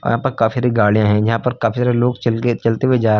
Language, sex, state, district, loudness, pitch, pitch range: Hindi, male, Uttar Pradesh, Lucknow, -16 LUFS, 115 Hz, 115-125 Hz